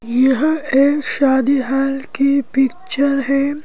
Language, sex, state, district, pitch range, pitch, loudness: Hindi, female, Madhya Pradesh, Bhopal, 270-285 Hz, 275 Hz, -16 LUFS